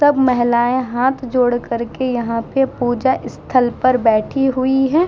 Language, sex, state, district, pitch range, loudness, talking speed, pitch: Hindi, female, Uttar Pradesh, Muzaffarnagar, 240-265 Hz, -17 LUFS, 155 wpm, 255 Hz